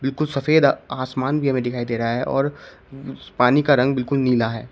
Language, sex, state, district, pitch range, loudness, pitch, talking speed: Hindi, male, Uttar Pradesh, Shamli, 125-140 Hz, -20 LUFS, 130 Hz, 190 wpm